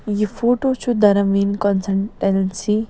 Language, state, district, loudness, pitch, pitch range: Kashmiri, Punjab, Kapurthala, -18 LUFS, 205 Hz, 195-225 Hz